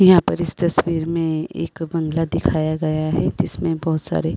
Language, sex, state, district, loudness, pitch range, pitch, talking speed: Hindi, female, Chhattisgarh, Rajnandgaon, -20 LUFS, 155-165 Hz, 160 Hz, 195 wpm